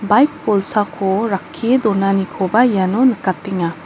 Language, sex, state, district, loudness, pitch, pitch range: Garo, female, Meghalaya, North Garo Hills, -16 LUFS, 205 Hz, 190-235 Hz